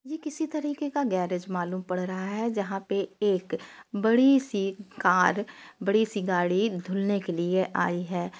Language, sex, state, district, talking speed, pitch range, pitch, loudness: Hindi, female, Uttar Pradesh, Etah, 165 wpm, 180-220 Hz, 200 Hz, -27 LUFS